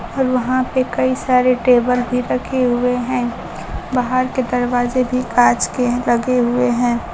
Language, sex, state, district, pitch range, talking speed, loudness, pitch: Hindi, female, Bihar, Kaimur, 245-255 Hz, 160 wpm, -17 LUFS, 250 Hz